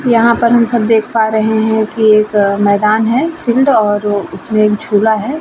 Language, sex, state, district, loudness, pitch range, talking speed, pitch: Hindi, female, Uttar Pradesh, Varanasi, -12 LUFS, 210-235 Hz, 200 wpm, 220 Hz